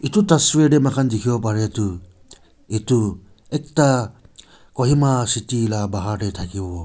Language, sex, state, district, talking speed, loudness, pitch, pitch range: Nagamese, male, Nagaland, Kohima, 130 wpm, -19 LUFS, 115 Hz, 100-135 Hz